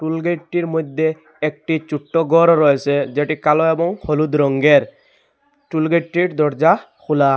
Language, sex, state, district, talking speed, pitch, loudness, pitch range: Bengali, male, Assam, Hailakandi, 130 wpm, 160 Hz, -17 LUFS, 150-170 Hz